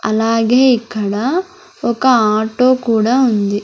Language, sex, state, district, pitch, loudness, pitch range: Telugu, female, Andhra Pradesh, Sri Satya Sai, 235 Hz, -14 LUFS, 220-255 Hz